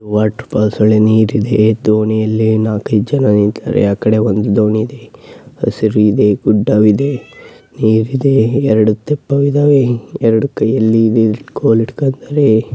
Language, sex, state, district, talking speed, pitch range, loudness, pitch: Kannada, male, Karnataka, Raichur, 105 wpm, 105-130 Hz, -13 LUFS, 110 Hz